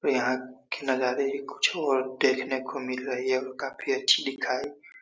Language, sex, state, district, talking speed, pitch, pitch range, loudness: Hindi, male, Uttar Pradesh, Muzaffarnagar, 165 wpm, 130 Hz, 130-135 Hz, -28 LUFS